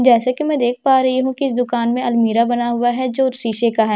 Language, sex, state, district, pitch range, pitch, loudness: Hindi, female, Bihar, Katihar, 235-260 Hz, 245 Hz, -16 LUFS